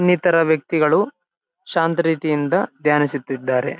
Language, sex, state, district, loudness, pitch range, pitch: Kannada, male, Karnataka, Bellary, -19 LUFS, 145-165 Hz, 160 Hz